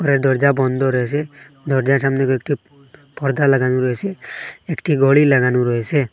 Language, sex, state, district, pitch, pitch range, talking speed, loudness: Bengali, male, Assam, Hailakandi, 135 Hz, 130-145 Hz, 135 wpm, -17 LUFS